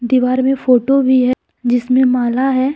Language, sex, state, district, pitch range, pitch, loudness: Hindi, female, Jharkhand, Deoghar, 250-260 Hz, 255 Hz, -14 LUFS